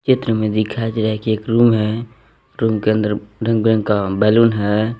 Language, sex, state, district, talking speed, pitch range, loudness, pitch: Hindi, male, Jharkhand, Palamu, 205 wpm, 105-115 Hz, -17 LUFS, 110 Hz